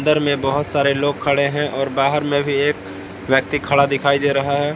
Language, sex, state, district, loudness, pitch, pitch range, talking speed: Hindi, male, Jharkhand, Palamu, -18 LUFS, 140 Hz, 140-145 Hz, 225 wpm